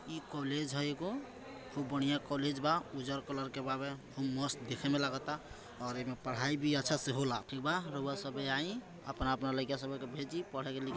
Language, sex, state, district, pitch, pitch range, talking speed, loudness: Maithili, male, Bihar, Samastipur, 140 Hz, 135-145 Hz, 185 wpm, -37 LUFS